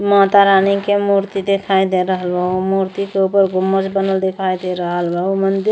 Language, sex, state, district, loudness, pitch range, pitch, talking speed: Bhojpuri, female, Uttar Pradesh, Gorakhpur, -16 LUFS, 185-195 Hz, 195 Hz, 220 wpm